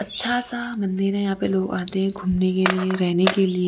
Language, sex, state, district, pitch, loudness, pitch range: Hindi, female, Gujarat, Valsad, 195 Hz, -22 LUFS, 185-200 Hz